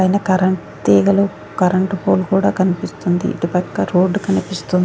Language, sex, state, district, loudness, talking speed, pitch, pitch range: Telugu, female, Andhra Pradesh, Sri Satya Sai, -17 LUFS, 135 wpm, 185 Hz, 180-195 Hz